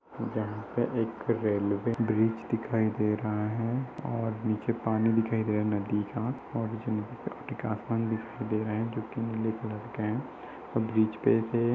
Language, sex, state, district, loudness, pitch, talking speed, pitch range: Hindi, male, Uttar Pradesh, Jyotiba Phule Nagar, -31 LUFS, 110 Hz, 180 wpm, 110-115 Hz